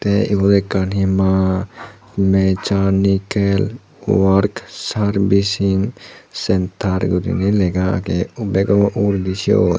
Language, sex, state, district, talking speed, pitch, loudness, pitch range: Chakma, male, Tripura, Dhalai, 90 wpm, 95 Hz, -17 LUFS, 95-100 Hz